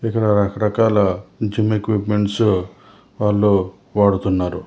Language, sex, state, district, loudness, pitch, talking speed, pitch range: Telugu, male, Telangana, Hyderabad, -18 LUFS, 105 Hz, 75 wpm, 95-105 Hz